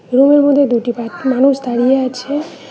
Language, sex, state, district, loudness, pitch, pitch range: Bengali, female, West Bengal, Cooch Behar, -14 LUFS, 260 Hz, 245-280 Hz